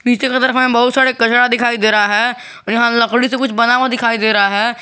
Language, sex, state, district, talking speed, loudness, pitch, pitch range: Hindi, male, Jharkhand, Garhwa, 275 wpm, -13 LUFS, 240 Hz, 230-255 Hz